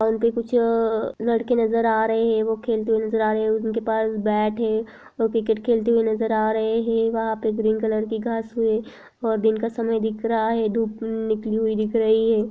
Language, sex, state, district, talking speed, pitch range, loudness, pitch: Hindi, female, Chhattisgarh, Raigarh, 230 wpm, 220-230 Hz, -22 LUFS, 225 Hz